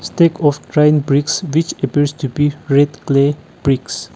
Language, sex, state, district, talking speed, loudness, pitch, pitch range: English, male, Nagaland, Kohima, 160 wpm, -16 LUFS, 145 Hz, 140-150 Hz